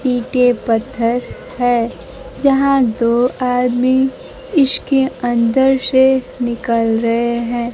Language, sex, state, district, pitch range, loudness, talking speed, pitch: Hindi, female, Bihar, Kaimur, 235-265 Hz, -15 LUFS, 95 wpm, 250 Hz